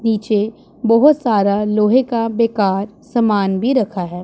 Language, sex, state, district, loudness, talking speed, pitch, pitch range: Hindi, male, Punjab, Pathankot, -16 LUFS, 140 wpm, 220 Hz, 205-235 Hz